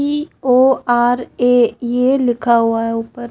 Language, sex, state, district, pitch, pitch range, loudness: Hindi, female, Chhattisgarh, Raipur, 245 Hz, 235-255 Hz, -15 LUFS